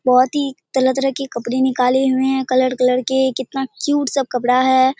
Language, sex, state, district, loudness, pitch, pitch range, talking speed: Hindi, female, Bihar, Purnia, -17 LUFS, 260 Hz, 255-270 Hz, 215 wpm